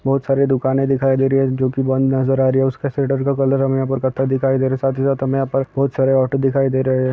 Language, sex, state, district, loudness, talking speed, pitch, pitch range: Hindi, male, Andhra Pradesh, Chittoor, -17 LUFS, 235 wpm, 135 Hz, 130-135 Hz